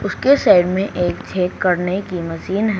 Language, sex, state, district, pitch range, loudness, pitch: Hindi, male, Haryana, Charkhi Dadri, 180-200 Hz, -17 LUFS, 185 Hz